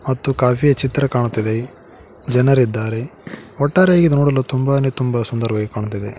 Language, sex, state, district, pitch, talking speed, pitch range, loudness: Kannada, male, Karnataka, Koppal, 125 Hz, 115 wpm, 110-140 Hz, -17 LUFS